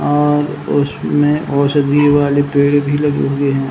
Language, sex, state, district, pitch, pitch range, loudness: Hindi, male, Uttar Pradesh, Hamirpur, 145 Hz, 140-145 Hz, -14 LUFS